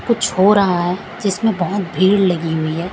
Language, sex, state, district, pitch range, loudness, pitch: Hindi, female, Punjab, Kapurthala, 175-205 Hz, -16 LUFS, 190 Hz